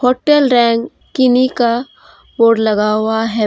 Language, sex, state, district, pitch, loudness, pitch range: Hindi, female, Jharkhand, Deoghar, 235 Hz, -13 LUFS, 220-255 Hz